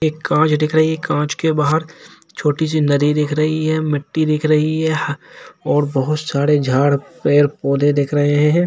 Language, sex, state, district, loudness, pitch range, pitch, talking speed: Hindi, male, Jharkhand, Jamtara, -17 LUFS, 145-155 Hz, 150 Hz, 185 wpm